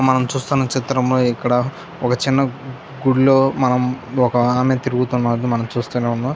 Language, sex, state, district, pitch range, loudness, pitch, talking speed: Telugu, male, Andhra Pradesh, Chittoor, 125-135 Hz, -18 LUFS, 130 Hz, 120 wpm